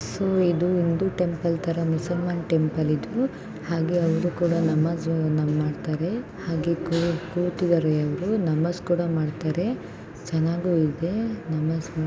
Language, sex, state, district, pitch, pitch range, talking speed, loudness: Kannada, female, Karnataka, Mysore, 170 Hz, 160-175 Hz, 105 wpm, -25 LUFS